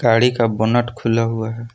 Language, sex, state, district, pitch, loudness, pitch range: Hindi, male, Jharkhand, Palamu, 115 Hz, -18 LUFS, 115-120 Hz